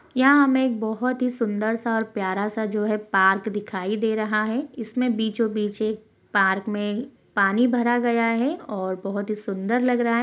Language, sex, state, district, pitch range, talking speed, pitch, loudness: Hindi, female, Bihar, Jamui, 210-240 Hz, 180 wpm, 220 Hz, -23 LUFS